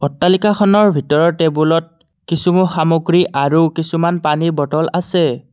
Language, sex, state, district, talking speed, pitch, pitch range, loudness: Assamese, male, Assam, Kamrup Metropolitan, 110 wpm, 165 Hz, 155-175 Hz, -15 LUFS